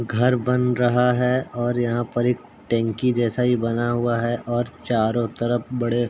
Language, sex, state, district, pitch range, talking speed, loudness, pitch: Hindi, male, Uttar Pradesh, Ghazipur, 120-125 Hz, 185 wpm, -22 LUFS, 120 Hz